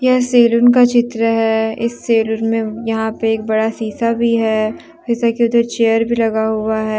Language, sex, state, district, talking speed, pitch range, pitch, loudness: Hindi, female, Jharkhand, Deoghar, 195 wpm, 220-235 Hz, 225 Hz, -15 LUFS